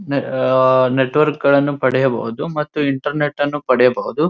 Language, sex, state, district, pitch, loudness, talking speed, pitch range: Kannada, male, Karnataka, Dharwad, 140 Hz, -17 LUFS, 125 wpm, 130-145 Hz